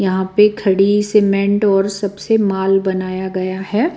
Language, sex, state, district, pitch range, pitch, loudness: Hindi, female, Bihar, West Champaran, 190-210 Hz, 195 Hz, -16 LUFS